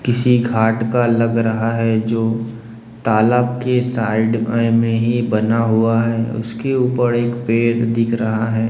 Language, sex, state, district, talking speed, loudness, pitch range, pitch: Hindi, male, Maharashtra, Gondia, 160 wpm, -17 LUFS, 115-120 Hz, 115 Hz